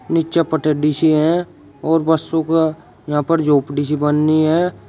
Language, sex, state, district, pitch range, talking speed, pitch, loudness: Hindi, male, Uttar Pradesh, Shamli, 150-165 Hz, 145 wpm, 155 Hz, -17 LUFS